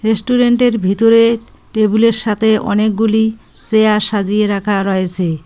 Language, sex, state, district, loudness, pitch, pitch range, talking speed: Bengali, female, West Bengal, Cooch Behar, -13 LUFS, 215 Hz, 205-225 Hz, 100 wpm